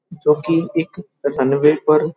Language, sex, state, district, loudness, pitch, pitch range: Hindi, male, Uttar Pradesh, Hamirpur, -18 LUFS, 155 Hz, 150-165 Hz